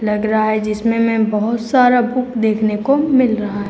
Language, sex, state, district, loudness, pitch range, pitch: Hindi, female, Uttar Pradesh, Etah, -16 LUFS, 215-245 Hz, 225 Hz